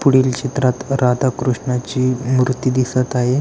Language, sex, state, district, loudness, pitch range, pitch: Marathi, male, Maharashtra, Aurangabad, -18 LUFS, 125-130 Hz, 130 Hz